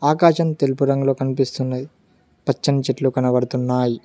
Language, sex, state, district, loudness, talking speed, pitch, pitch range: Telugu, male, Telangana, Mahabubabad, -20 LUFS, 105 wpm, 135 Hz, 130-140 Hz